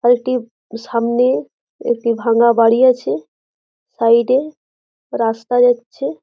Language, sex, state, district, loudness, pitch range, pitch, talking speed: Bengali, female, West Bengal, Jhargram, -16 LUFS, 230-250 Hz, 235 Hz, 95 wpm